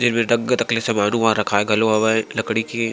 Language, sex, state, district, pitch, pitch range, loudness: Chhattisgarhi, male, Chhattisgarh, Sarguja, 115 Hz, 110-115 Hz, -19 LUFS